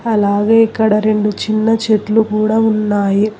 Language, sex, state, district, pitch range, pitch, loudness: Telugu, female, Telangana, Hyderabad, 210-220 Hz, 215 Hz, -14 LUFS